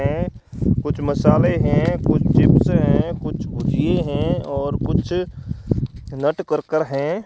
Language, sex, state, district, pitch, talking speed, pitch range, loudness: Hindi, male, Rajasthan, Bikaner, 150 Hz, 105 wpm, 140-165 Hz, -20 LUFS